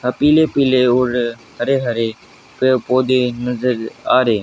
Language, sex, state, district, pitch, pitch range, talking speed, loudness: Hindi, male, Haryana, Jhajjar, 125 Hz, 120-130 Hz, 150 wpm, -16 LUFS